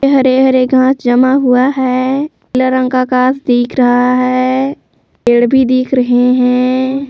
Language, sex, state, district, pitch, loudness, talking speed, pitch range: Hindi, female, Jharkhand, Palamu, 255 Hz, -11 LUFS, 145 wpm, 250-260 Hz